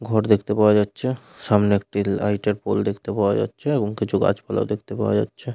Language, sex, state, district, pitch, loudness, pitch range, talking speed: Bengali, male, West Bengal, Malda, 105 Hz, -21 LUFS, 100-110 Hz, 205 wpm